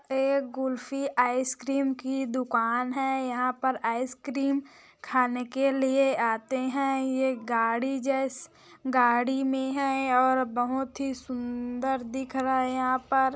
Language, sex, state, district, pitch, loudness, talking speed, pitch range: Hindi, female, Chhattisgarh, Korba, 260 Hz, -27 LUFS, 140 wpm, 250-270 Hz